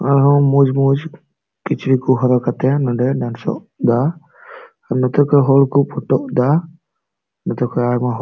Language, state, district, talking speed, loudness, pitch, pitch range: Santali, Jharkhand, Sahebganj, 145 wpm, -16 LUFS, 135 Hz, 125-150 Hz